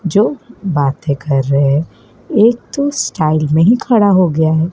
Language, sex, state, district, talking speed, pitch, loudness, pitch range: Hindi, male, Madhya Pradesh, Dhar, 175 wpm, 175 Hz, -14 LUFS, 150-225 Hz